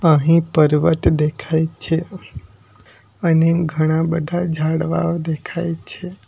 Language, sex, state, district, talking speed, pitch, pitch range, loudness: Gujarati, male, Gujarat, Valsad, 85 wpm, 160 Hz, 155-170 Hz, -18 LUFS